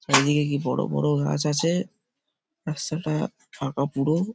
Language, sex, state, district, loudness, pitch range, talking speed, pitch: Bengali, male, West Bengal, Paschim Medinipur, -25 LUFS, 135-165 Hz, 125 wpm, 150 Hz